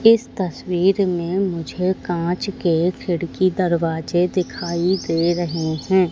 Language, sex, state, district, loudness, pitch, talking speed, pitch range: Hindi, female, Madhya Pradesh, Katni, -20 LUFS, 175 Hz, 120 wpm, 170-185 Hz